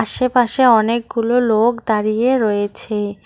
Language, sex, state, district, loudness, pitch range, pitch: Bengali, female, West Bengal, Cooch Behar, -16 LUFS, 215-245 Hz, 230 Hz